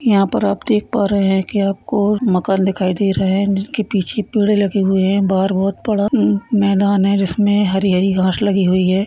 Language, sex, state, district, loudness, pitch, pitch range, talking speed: Hindi, female, Uttarakhand, Uttarkashi, -16 LUFS, 195 Hz, 190-205 Hz, 205 wpm